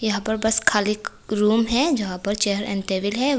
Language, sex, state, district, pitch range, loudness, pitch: Hindi, female, Tripura, West Tripura, 200-225 Hz, -22 LUFS, 210 Hz